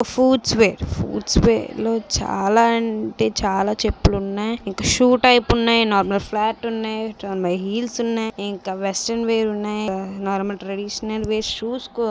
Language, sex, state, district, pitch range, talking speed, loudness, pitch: Telugu, female, Andhra Pradesh, Visakhapatnam, 195-230 Hz, 180 wpm, -20 LUFS, 215 Hz